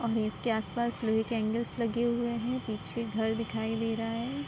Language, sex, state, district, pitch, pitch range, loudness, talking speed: Hindi, female, Uttar Pradesh, Budaun, 230 Hz, 220-235 Hz, -32 LUFS, 200 wpm